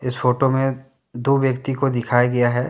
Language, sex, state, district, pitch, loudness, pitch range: Hindi, male, Jharkhand, Deoghar, 130 Hz, -20 LUFS, 125-135 Hz